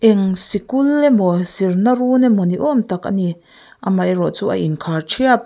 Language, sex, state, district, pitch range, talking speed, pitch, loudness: Mizo, female, Mizoram, Aizawl, 180-245 Hz, 185 wpm, 195 Hz, -16 LUFS